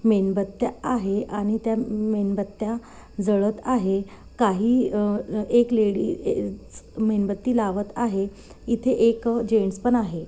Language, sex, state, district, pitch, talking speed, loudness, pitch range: Marathi, female, Maharashtra, Nagpur, 215 Hz, 110 wpm, -24 LUFS, 200-235 Hz